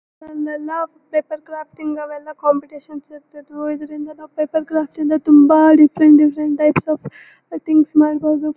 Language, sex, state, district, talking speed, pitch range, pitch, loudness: Kannada, female, Karnataka, Bellary, 125 wpm, 300-310 Hz, 305 Hz, -16 LUFS